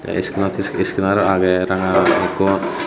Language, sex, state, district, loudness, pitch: Chakma, male, Tripura, Unakoti, -17 LUFS, 95 Hz